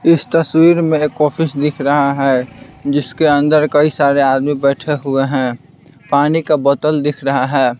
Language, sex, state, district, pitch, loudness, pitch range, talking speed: Hindi, male, Bihar, Patna, 145 Hz, -14 LUFS, 140-155 Hz, 170 wpm